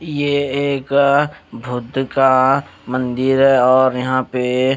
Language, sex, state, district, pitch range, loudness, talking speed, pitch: Hindi, female, Punjab, Fazilka, 130-140 Hz, -16 LUFS, 115 wpm, 135 Hz